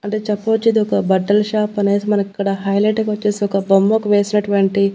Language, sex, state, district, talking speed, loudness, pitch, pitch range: Telugu, female, Andhra Pradesh, Annamaya, 155 wpm, -17 LUFS, 205 Hz, 200-210 Hz